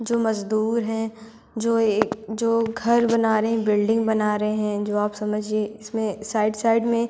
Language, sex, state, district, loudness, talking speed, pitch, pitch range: Hindi, female, Delhi, New Delhi, -23 LUFS, 175 wpm, 220 Hz, 215-230 Hz